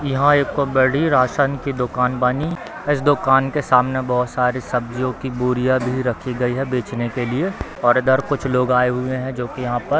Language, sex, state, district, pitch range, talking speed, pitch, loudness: Hindi, male, Bihar, Darbhanga, 125-140 Hz, 215 wpm, 130 Hz, -19 LUFS